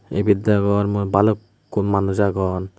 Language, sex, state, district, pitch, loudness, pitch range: Chakma, male, Tripura, West Tripura, 100 Hz, -20 LUFS, 100-105 Hz